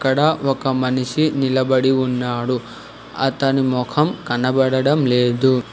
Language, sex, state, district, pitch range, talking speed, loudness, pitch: Telugu, male, Telangana, Hyderabad, 125-135 Hz, 95 wpm, -18 LUFS, 130 Hz